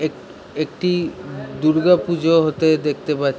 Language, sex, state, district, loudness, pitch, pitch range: Bengali, male, West Bengal, Jhargram, -18 LUFS, 155 Hz, 155-170 Hz